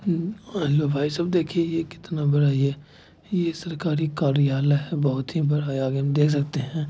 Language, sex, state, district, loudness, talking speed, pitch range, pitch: Hindi, male, Bihar, Gopalganj, -24 LUFS, 190 wpm, 145-165 Hz, 150 Hz